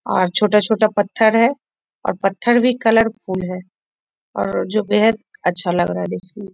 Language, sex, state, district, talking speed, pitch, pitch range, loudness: Hindi, female, Bihar, Bhagalpur, 165 wpm, 210 Hz, 185-225 Hz, -18 LUFS